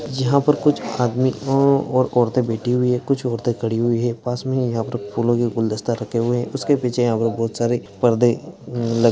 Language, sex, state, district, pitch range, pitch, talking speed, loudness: Hindi, male, Maharashtra, Dhule, 115-130 Hz, 120 Hz, 215 wpm, -20 LUFS